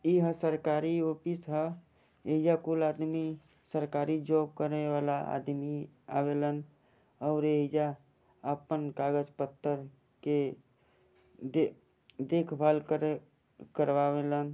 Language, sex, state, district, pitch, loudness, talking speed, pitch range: Bhojpuri, male, Jharkhand, Sahebganj, 150 Hz, -32 LUFS, 105 wpm, 145-155 Hz